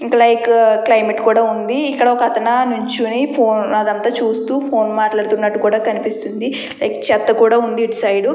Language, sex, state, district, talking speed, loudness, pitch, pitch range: Telugu, female, Andhra Pradesh, Chittoor, 115 wpm, -15 LUFS, 230 Hz, 220-240 Hz